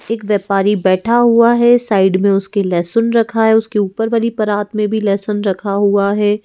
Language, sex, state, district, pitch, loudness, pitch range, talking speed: Hindi, female, Madhya Pradesh, Bhopal, 210 Hz, -14 LUFS, 200-225 Hz, 195 wpm